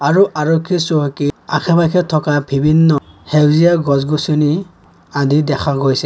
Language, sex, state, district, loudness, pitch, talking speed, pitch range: Assamese, male, Assam, Kamrup Metropolitan, -14 LUFS, 150 Hz, 110 wpm, 145-165 Hz